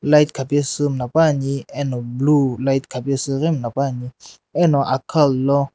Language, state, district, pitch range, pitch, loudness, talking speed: Sumi, Nagaland, Dimapur, 130-145 Hz, 140 Hz, -19 LUFS, 115 wpm